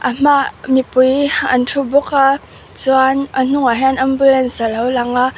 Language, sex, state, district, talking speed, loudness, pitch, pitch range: Mizo, female, Mizoram, Aizawl, 155 wpm, -14 LUFS, 265 Hz, 255-275 Hz